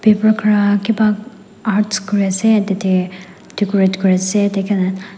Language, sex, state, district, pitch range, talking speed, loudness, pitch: Nagamese, female, Nagaland, Dimapur, 190-210 Hz, 70 wpm, -16 LUFS, 205 Hz